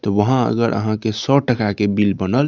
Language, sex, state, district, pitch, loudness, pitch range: Maithili, male, Bihar, Saharsa, 110 Hz, -18 LUFS, 105-125 Hz